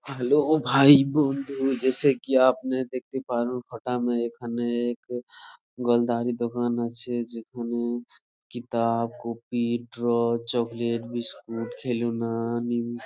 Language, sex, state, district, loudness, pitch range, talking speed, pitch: Bengali, male, West Bengal, Purulia, -24 LUFS, 120-130 Hz, 100 wpm, 120 Hz